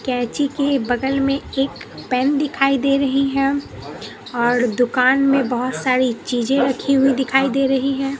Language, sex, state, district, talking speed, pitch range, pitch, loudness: Hindi, female, Bihar, Katihar, 160 wpm, 255-275 Hz, 270 Hz, -18 LUFS